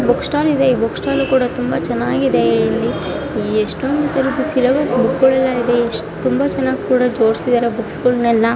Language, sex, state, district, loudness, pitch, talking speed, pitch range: Kannada, female, Karnataka, Raichur, -16 LUFS, 250 Hz, 155 wpm, 240-270 Hz